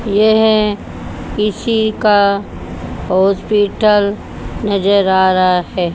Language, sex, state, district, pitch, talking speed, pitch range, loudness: Hindi, female, Haryana, Charkhi Dadri, 200 Hz, 80 wpm, 185-210 Hz, -14 LUFS